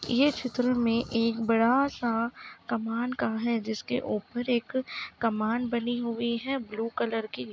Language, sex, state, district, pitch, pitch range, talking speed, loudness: Hindi, female, Uttar Pradesh, Ghazipur, 235 Hz, 230-250 Hz, 150 wpm, -29 LUFS